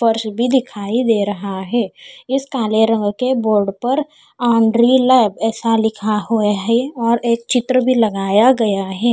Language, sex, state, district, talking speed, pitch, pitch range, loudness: Hindi, female, Haryana, Charkhi Dadri, 150 wpm, 230 Hz, 215-245 Hz, -16 LUFS